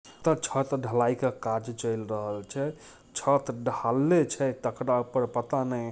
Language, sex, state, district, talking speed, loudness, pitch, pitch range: Hindi, male, Bihar, Muzaffarpur, 140 wpm, -28 LUFS, 130 Hz, 120-140 Hz